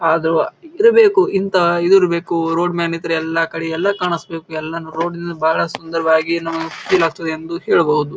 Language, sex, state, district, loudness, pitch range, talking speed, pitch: Kannada, male, Karnataka, Bijapur, -17 LUFS, 165-175 Hz, 155 wpm, 165 Hz